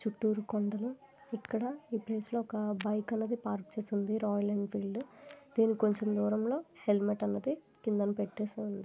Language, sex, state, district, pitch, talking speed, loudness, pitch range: Telugu, female, Andhra Pradesh, Visakhapatnam, 215 Hz, 140 wpm, -34 LUFS, 210-235 Hz